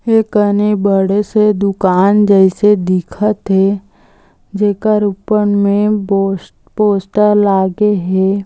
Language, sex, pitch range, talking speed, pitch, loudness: Chhattisgarhi, female, 195-210 Hz, 105 wpm, 200 Hz, -13 LUFS